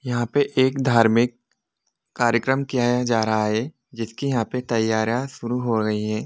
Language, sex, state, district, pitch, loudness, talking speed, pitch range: Hindi, male, Jharkhand, Jamtara, 120 Hz, -22 LUFS, 170 wpm, 115-130 Hz